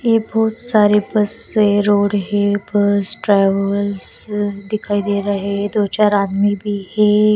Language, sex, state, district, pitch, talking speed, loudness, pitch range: Hindi, female, Bihar, West Champaran, 205 Hz, 140 wpm, -17 LUFS, 200-210 Hz